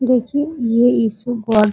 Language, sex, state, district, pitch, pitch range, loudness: Hindi, male, Bihar, Muzaffarpur, 240 Hz, 225-255 Hz, -17 LUFS